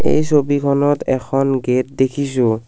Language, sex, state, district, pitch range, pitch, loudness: Assamese, male, Assam, Kamrup Metropolitan, 130-145 Hz, 135 Hz, -17 LUFS